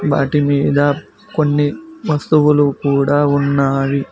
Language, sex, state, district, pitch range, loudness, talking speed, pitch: Telugu, male, Telangana, Mahabubabad, 140-150 Hz, -15 LUFS, 85 wpm, 145 Hz